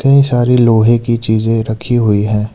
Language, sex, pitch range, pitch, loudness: Hindi, male, 110-120 Hz, 115 Hz, -12 LUFS